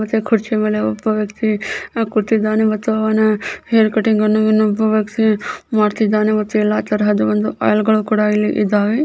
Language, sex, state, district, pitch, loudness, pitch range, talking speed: Kannada, male, Karnataka, Belgaum, 215 Hz, -16 LUFS, 210-220 Hz, 140 wpm